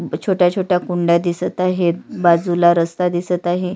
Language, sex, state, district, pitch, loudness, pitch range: Marathi, female, Maharashtra, Sindhudurg, 175 Hz, -17 LUFS, 175-180 Hz